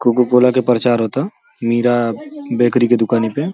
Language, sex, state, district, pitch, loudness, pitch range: Hindi, male, Uttar Pradesh, Gorakhpur, 120 Hz, -15 LUFS, 120-130 Hz